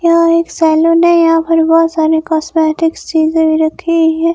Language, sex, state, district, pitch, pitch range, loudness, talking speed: Hindi, female, Himachal Pradesh, Shimla, 325 Hz, 320-335 Hz, -11 LUFS, 180 wpm